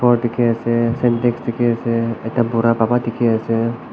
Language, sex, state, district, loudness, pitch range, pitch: Nagamese, male, Nagaland, Kohima, -18 LUFS, 115-120 Hz, 115 Hz